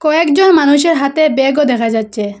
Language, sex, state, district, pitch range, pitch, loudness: Bengali, female, Assam, Hailakandi, 230-315 Hz, 290 Hz, -12 LUFS